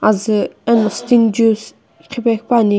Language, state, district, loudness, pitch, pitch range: Sumi, Nagaland, Kohima, -15 LUFS, 225 Hz, 215-235 Hz